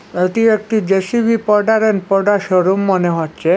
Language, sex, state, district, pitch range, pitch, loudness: Bengali, male, Assam, Hailakandi, 185-220 Hz, 200 Hz, -15 LUFS